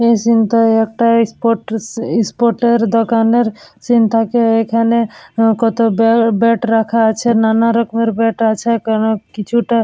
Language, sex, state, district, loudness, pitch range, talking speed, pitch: Bengali, female, West Bengal, Purulia, -14 LUFS, 225-230 Hz, 130 wpm, 230 Hz